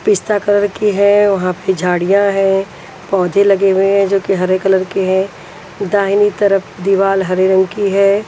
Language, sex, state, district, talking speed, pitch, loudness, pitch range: Hindi, female, Haryana, Charkhi Dadri, 180 wpm, 195 Hz, -13 LUFS, 190-200 Hz